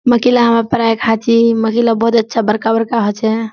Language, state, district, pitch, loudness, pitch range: Surjapuri, Bihar, Kishanganj, 230 Hz, -13 LUFS, 225-235 Hz